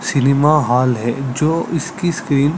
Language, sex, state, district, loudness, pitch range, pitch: Hindi, male, Chhattisgarh, Sarguja, -16 LUFS, 130-165 Hz, 140 Hz